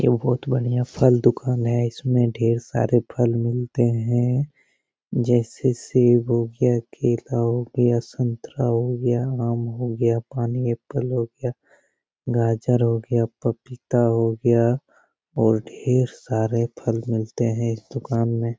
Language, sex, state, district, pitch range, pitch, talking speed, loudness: Hindi, male, Bihar, Jamui, 115-125 Hz, 120 Hz, 145 wpm, -22 LUFS